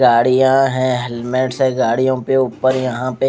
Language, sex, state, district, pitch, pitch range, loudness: Hindi, male, Odisha, Khordha, 130 Hz, 125-130 Hz, -16 LUFS